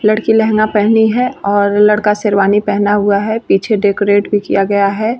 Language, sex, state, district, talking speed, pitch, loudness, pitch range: Hindi, female, Bihar, Vaishali, 185 wpm, 210 Hz, -12 LUFS, 205-220 Hz